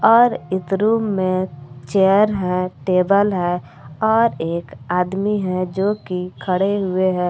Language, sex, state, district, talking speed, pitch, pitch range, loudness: Hindi, female, Jharkhand, Palamu, 140 wpm, 185 Hz, 180-200 Hz, -19 LUFS